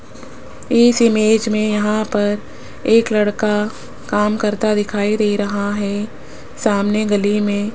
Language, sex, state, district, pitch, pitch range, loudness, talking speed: Hindi, female, Rajasthan, Jaipur, 210 Hz, 205-215 Hz, -17 LUFS, 130 wpm